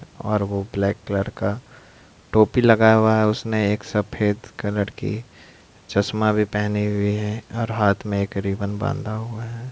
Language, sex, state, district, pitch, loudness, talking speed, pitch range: Hindi, male, Bihar, Purnia, 105 Hz, -22 LUFS, 155 wpm, 100-110 Hz